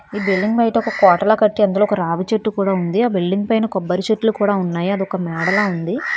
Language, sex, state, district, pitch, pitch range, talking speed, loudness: Telugu, female, Telangana, Hyderabad, 200 Hz, 185-215 Hz, 215 wpm, -17 LUFS